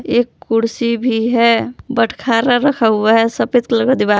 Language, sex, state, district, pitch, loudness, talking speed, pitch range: Hindi, female, Jharkhand, Palamu, 235 Hz, -15 LUFS, 170 wpm, 225-245 Hz